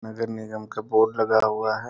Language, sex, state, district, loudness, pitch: Hindi, male, Bihar, Sitamarhi, -24 LUFS, 110 Hz